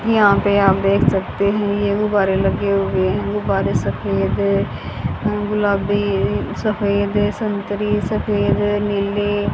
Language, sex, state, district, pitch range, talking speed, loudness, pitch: Hindi, female, Haryana, Charkhi Dadri, 195-205 Hz, 120 wpm, -18 LUFS, 205 Hz